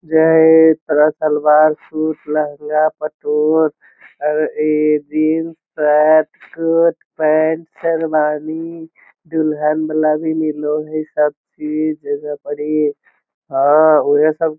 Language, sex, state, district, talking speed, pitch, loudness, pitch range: Magahi, male, Bihar, Lakhisarai, 110 wpm, 155 Hz, -16 LUFS, 150-160 Hz